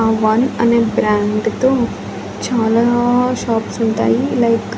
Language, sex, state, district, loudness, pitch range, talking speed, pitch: Telugu, female, Andhra Pradesh, Annamaya, -15 LUFS, 220-240 Hz, 125 wpm, 230 Hz